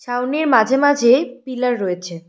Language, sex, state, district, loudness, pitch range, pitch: Bengali, female, West Bengal, Cooch Behar, -17 LUFS, 225-270 Hz, 250 Hz